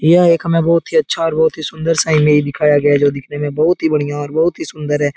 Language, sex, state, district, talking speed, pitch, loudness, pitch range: Hindi, male, Bihar, Jahanabad, 300 wpm, 155 Hz, -15 LUFS, 145-165 Hz